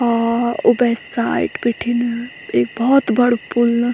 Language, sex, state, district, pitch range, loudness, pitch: Garhwali, female, Uttarakhand, Tehri Garhwal, 235-240 Hz, -17 LUFS, 235 Hz